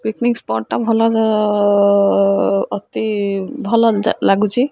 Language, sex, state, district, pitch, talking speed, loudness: Odia, female, Odisha, Khordha, 205 Hz, 100 wpm, -16 LUFS